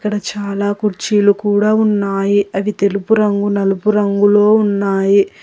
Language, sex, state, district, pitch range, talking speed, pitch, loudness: Telugu, female, Telangana, Hyderabad, 200-210 Hz, 120 wpm, 205 Hz, -14 LUFS